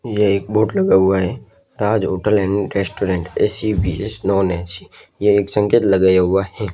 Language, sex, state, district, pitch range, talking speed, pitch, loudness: Hindi, male, Rajasthan, Barmer, 95-105 Hz, 185 wpm, 100 Hz, -17 LUFS